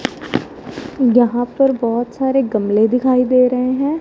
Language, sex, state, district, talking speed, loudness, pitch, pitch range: Hindi, female, Punjab, Fazilka, 135 wpm, -16 LUFS, 250 Hz, 240-265 Hz